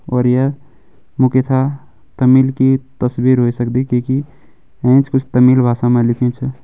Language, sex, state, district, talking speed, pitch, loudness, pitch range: Hindi, male, Uttarakhand, Uttarkashi, 155 wpm, 130 Hz, -14 LUFS, 125-130 Hz